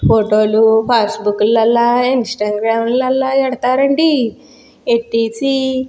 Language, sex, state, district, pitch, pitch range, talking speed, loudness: Telugu, female, Andhra Pradesh, Guntur, 235 Hz, 225-260 Hz, 90 wpm, -14 LUFS